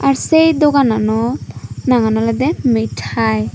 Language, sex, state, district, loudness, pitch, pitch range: Chakma, female, Tripura, Dhalai, -15 LUFS, 230 Hz, 215-275 Hz